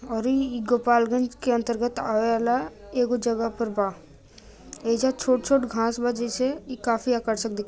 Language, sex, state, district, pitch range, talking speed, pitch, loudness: Bhojpuri, female, Bihar, Gopalganj, 225-250 Hz, 135 wpm, 235 Hz, -25 LUFS